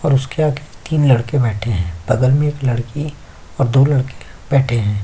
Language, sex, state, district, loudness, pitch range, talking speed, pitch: Hindi, male, Chhattisgarh, Kabirdham, -17 LUFS, 115-145 Hz, 190 wpm, 130 Hz